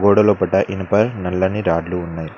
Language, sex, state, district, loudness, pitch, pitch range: Telugu, male, Telangana, Mahabubabad, -18 LUFS, 95 Hz, 90-100 Hz